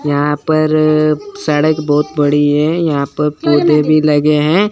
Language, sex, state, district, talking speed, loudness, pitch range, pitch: Hindi, female, Chandigarh, Chandigarh, 150 wpm, -13 LUFS, 150-155 Hz, 150 Hz